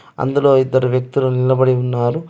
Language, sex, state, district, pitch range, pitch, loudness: Telugu, male, Telangana, Adilabad, 125-135 Hz, 130 Hz, -16 LUFS